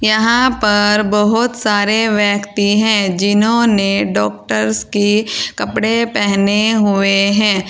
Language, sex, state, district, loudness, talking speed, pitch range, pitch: Hindi, female, Uttar Pradesh, Saharanpur, -14 LUFS, 100 wpm, 200-220 Hz, 205 Hz